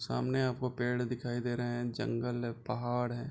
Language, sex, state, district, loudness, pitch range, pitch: Hindi, male, Bihar, Bhagalpur, -35 LUFS, 120-125 Hz, 120 Hz